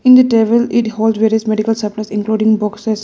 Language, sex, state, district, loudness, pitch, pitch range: English, female, Arunachal Pradesh, Lower Dibang Valley, -14 LUFS, 220 Hz, 215-225 Hz